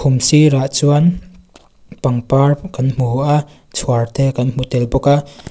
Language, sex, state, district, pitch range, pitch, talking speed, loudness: Mizo, female, Mizoram, Aizawl, 125-145 Hz, 135 Hz, 165 wpm, -15 LUFS